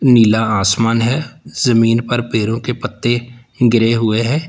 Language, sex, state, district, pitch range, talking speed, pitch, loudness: Hindi, male, Uttar Pradesh, Lalitpur, 115-125 Hz, 145 wpm, 115 Hz, -15 LUFS